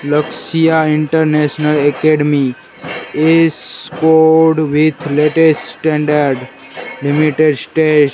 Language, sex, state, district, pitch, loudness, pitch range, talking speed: Hindi, male, Gujarat, Gandhinagar, 155 Hz, -13 LUFS, 145-160 Hz, 75 wpm